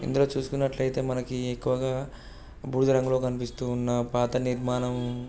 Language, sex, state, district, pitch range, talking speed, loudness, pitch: Telugu, male, Andhra Pradesh, Guntur, 125-130 Hz, 115 wpm, -28 LUFS, 125 Hz